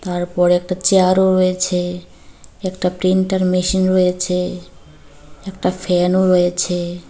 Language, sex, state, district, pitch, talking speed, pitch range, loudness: Bengali, female, Tripura, Dhalai, 180 Hz, 95 wpm, 175-185 Hz, -17 LUFS